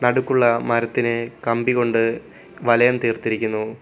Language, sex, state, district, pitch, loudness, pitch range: Malayalam, male, Kerala, Kollam, 115 Hz, -20 LUFS, 115-120 Hz